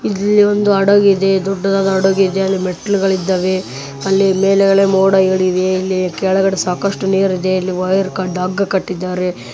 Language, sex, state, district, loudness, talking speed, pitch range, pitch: Kannada, male, Karnataka, Bellary, -14 LUFS, 150 wpm, 185-195 Hz, 190 Hz